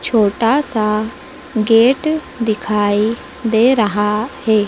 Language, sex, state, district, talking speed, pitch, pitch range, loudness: Hindi, female, Madhya Pradesh, Dhar, 90 wpm, 220 Hz, 210-255 Hz, -16 LUFS